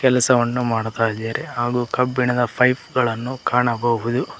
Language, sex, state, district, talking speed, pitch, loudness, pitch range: Kannada, male, Karnataka, Koppal, 110 wpm, 125 Hz, -20 LUFS, 115-125 Hz